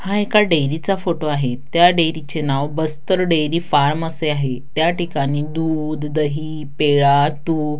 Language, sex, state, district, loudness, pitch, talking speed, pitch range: Marathi, female, Maharashtra, Dhule, -18 LUFS, 155 Hz, 160 wpm, 145-165 Hz